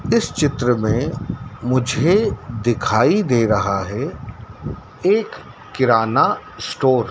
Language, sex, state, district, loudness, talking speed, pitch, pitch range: Hindi, male, Madhya Pradesh, Dhar, -19 LUFS, 100 wpm, 120 Hz, 110-130 Hz